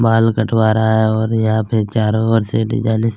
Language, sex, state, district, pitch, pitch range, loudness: Hindi, male, Chhattisgarh, Kabirdham, 110 Hz, 110-115 Hz, -15 LUFS